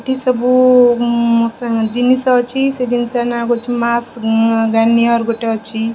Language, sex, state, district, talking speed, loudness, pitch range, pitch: Odia, female, Odisha, Khordha, 150 wpm, -14 LUFS, 230-250 Hz, 235 Hz